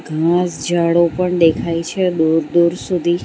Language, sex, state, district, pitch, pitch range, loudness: Gujarati, female, Gujarat, Valsad, 170 Hz, 165-175 Hz, -16 LUFS